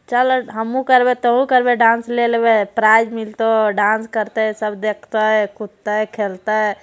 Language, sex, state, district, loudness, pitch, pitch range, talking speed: Hindi, female, Bihar, Jamui, -16 LUFS, 220 Hz, 215-240 Hz, 140 wpm